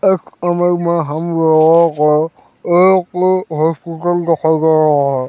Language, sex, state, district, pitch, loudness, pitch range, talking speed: Hindi, male, Chhattisgarh, Raigarh, 165 Hz, -14 LUFS, 160-175 Hz, 145 wpm